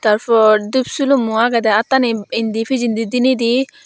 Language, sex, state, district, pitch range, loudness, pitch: Chakma, female, Tripura, Dhalai, 225-260 Hz, -15 LUFS, 235 Hz